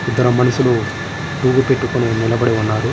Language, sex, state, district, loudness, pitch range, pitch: Telugu, male, Andhra Pradesh, Srikakulam, -16 LUFS, 115-130 Hz, 125 Hz